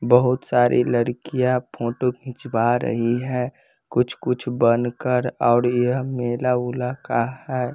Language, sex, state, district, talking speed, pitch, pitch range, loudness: Hindi, female, Bihar, West Champaran, 115 wpm, 125 Hz, 120-125 Hz, -22 LUFS